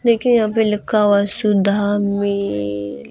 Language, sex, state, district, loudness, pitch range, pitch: Hindi, female, Bihar, Purnia, -17 LUFS, 200-215 Hz, 205 Hz